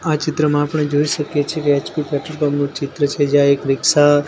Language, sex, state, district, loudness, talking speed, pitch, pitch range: Gujarati, male, Gujarat, Gandhinagar, -17 LUFS, 225 wpm, 145 Hz, 145-150 Hz